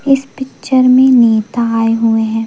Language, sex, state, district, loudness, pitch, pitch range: Hindi, female, Madhya Pradesh, Umaria, -11 LUFS, 235 Hz, 225-265 Hz